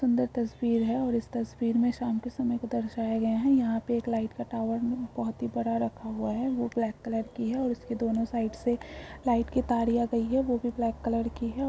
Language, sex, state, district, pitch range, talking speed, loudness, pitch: Hindi, female, Bihar, Supaul, 225-245 Hz, 240 wpm, -29 LUFS, 235 Hz